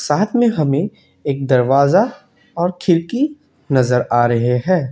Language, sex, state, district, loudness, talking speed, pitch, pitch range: Hindi, male, Assam, Kamrup Metropolitan, -17 LUFS, 135 wpm, 150 Hz, 130-195 Hz